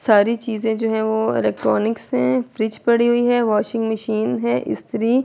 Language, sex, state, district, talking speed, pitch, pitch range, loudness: Urdu, female, Andhra Pradesh, Anantapur, 170 wpm, 220 Hz, 215-235 Hz, -19 LUFS